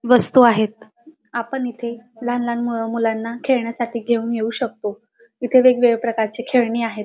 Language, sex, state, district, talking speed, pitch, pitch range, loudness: Marathi, female, Maharashtra, Dhule, 135 wpm, 235 Hz, 230-245 Hz, -19 LUFS